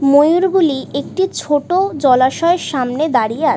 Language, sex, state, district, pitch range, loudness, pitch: Bengali, female, West Bengal, Jhargram, 265-345 Hz, -15 LUFS, 295 Hz